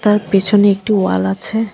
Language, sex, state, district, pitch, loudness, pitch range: Bengali, female, West Bengal, Alipurduar, 205 Hz, -14 LUFS, 185-210 Hz